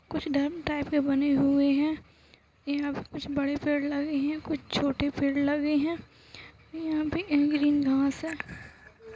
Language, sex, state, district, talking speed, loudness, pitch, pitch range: Hindi, female, Uttarakhand, Uttarkashi, 165 wpm, -28 LUFS, 290 Hz, 280-305 Hz